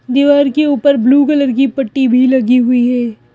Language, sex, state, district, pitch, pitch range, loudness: Hindi, female, Madhya Pradesh, Bhopal, 270 Hz, 250-285 Hz, -12 LUFS